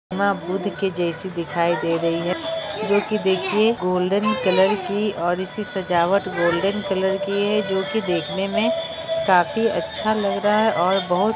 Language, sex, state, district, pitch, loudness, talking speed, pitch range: Hindi, female, Jharkhand, Jamtara, 195 Hz, -21 LUFS, 170 wpm, 180-210 Hz